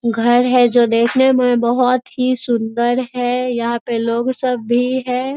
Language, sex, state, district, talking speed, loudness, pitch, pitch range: Hindi, female, Bihar, East Champaran, 165 wpm, -16 LUFS, 245 Hz, 235-250 Hz